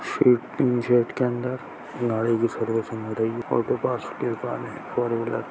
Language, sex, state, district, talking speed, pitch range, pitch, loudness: Hindi, male, Chhattisgarh, Sarguja, 55 wpm, 115-125 Hz, 120 Hz, -25 LUFS